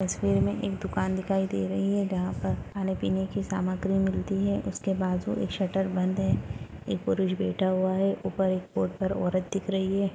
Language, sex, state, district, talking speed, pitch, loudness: Hindi, female, Maharashtra, Aurangabad, 200 wpm, 190 Hz, -28 LUFS